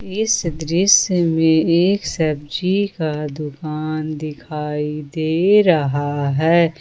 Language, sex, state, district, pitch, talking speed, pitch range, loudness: Hindi, female, Jharkhand, Ranchi, 160 Hz, 95 wpm, 150-180 Hz, -18 LUFS